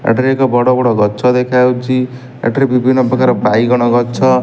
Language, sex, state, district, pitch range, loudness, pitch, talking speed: Odia, male, Odisha, Nuapada, 120-130 Hz, -12 LUFS, 125 Hz, 150 wpm